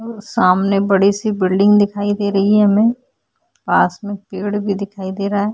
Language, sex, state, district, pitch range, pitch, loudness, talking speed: Hindi, female, Uttarakhand, Tehri Garhwal, 195-210 Hz, 200 Hz, -16 LUFS, 175 wpm